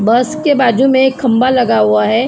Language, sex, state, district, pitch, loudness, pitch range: Hindi, female, Maharashtra, Mumbai Suburban, 250 Hz, -12 LUFS, 230-265 Hz